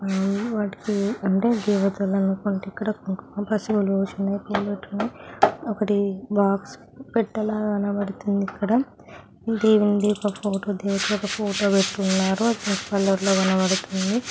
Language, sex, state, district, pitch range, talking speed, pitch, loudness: Telugu, female, Andhra Pradesh, Guntur, 195-215 Hz, 100 wpm, 205 Hz, -23 LUFS